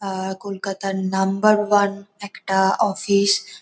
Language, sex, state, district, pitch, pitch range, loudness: Bengali, female, West Bengal, North 24 Parganas, 200 Hz, 190-205 Hz, -20 LUFS